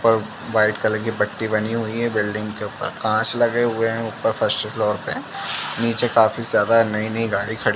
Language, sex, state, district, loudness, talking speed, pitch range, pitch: Hindi, male, Uttar Pradesh, Jalaun, -21 LUFS, 200 wpm, 110-115 Hz, 110 Hz